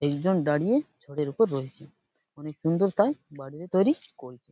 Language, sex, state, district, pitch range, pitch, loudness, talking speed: Bengali, male, West Bengal, Purulia, 145-190 Hz, 155 Hz, -26 LUFS, 160 wpm